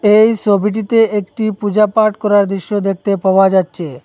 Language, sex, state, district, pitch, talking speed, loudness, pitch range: Bengali, male, Assam, Hailakandi, 205 Hz, 135 wpm, -14 LUFS, 195-215 Hz